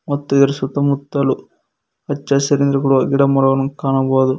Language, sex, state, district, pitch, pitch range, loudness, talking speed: Kannada, male, Karnataka, Koppal, 140 Hz, 135-140 Hz, -16 LUFS, 95 wpm